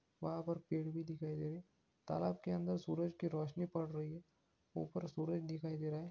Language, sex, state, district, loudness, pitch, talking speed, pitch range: Hindi, male, Andhra Pradesh, Anantapur, -43 LUFS, 160 Hz, 225 wpm, 155-165 Hz